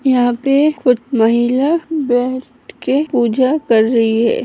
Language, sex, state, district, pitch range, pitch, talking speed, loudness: Hindi, female, Uttar Pradesh, Hamirpur, 235-275 Hz, 255 Hz, 135 wpm, -14 LUFS